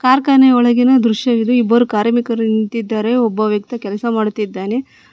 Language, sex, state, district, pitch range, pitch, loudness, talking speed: Kannada, female, Karnataka, Bangalore, 215-245 Hz, 230 Hz, -15 LUFS, 115 wpm